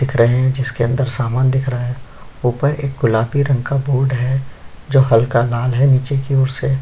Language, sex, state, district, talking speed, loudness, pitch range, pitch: Hindi, male, Chhattisgarh, Sukma, 220 wpm, -17 LUFS, 125-135 Hz, 130 Hz